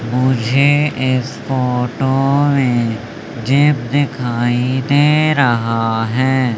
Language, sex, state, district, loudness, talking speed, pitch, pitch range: Hindi, male, Madhya Pradesh, Umaria, -15 LUFS, 80 wpm, 130 Hz, 120-140 Hz